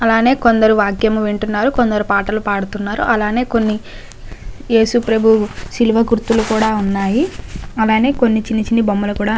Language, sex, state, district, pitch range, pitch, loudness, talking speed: Telugu, female, Andhra Pradesh, Guntur, 210-230 Hz, 220 Hz, -15 LUFS, 135 wpm